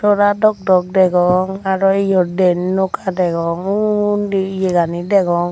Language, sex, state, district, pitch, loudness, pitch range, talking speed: Chakma, female, Tripura, Unakoti, 190 Hz, -16 LUFS, 180-200 Hz, 130 wpm